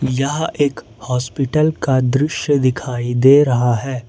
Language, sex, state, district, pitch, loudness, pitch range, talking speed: Hindi, male, Jharkhand, Ranchi, 135 Hz, -16 LUFS, 125-145 Hz, 130 wpm